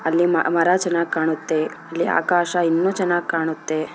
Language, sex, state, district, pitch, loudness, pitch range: Kannada, female, Karnataka, Bellary, 170 Hz, -20 LUFS, 160-175 Hz